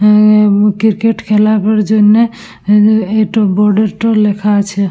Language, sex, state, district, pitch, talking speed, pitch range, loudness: Bengali, female, West Bengal, Dakshin Dinajpur, 210 Hz, 135 wpm, 205-215 Hz, -10 LUFS